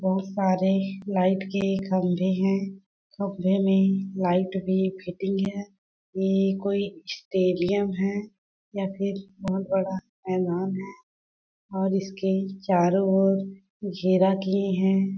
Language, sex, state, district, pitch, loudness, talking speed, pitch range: Hindi, female, Chhattisgarh, Balrampur, 195 Hz, -25 LUFS, 115 wpm, 190-195 Hz